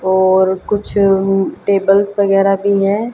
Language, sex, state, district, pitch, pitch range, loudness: Hindi, female, Haryana, Jhajjar, 195 Hz, 190-200 Hz, -14 LUFS